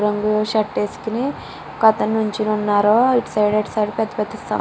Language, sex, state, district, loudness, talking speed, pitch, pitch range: Telugu, female, Andhra Pradesh, Srikakulam, -19 LUFS, 180 wpm, 215 Hz, 210-220 Hz